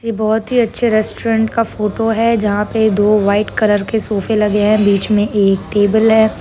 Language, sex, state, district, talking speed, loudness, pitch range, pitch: Hindi, female, Rajasthan, Nagaur, 205 wpm, -14 LUFS, 205-225 Hz, 215 Hz